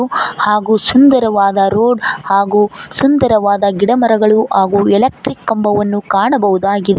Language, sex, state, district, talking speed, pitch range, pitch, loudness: Kannada, female, Karnataka, Koppal, 105 wpm, 200-240 Hz, 210 Hz, -12 LUFS